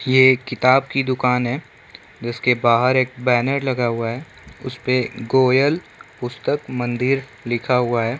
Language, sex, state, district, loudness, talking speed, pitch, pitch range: Hindi, male, Uttar Pradesh, Gorakhpur, -19 LUFS, 160 wpm, 125 Hz, 120-130 Hz